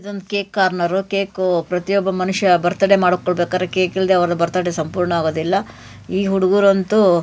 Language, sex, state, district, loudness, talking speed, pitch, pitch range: Kannada, female, Karnataka, Shimoga, -18 LUFS, 140 wpm, 185 Hz, 175-195 Hz